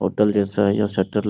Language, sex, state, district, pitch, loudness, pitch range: Hindi, male, Bihar, Sitamarhi, 100 Hz, -20 LUFS, 100-105 Hz